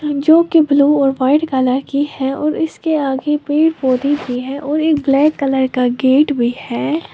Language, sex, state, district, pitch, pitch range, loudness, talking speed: Hindi, female, Uttar Pradesh, Lalitpur, 285 Hz, 265-305 Hz, -15 LUFS, 195 wpm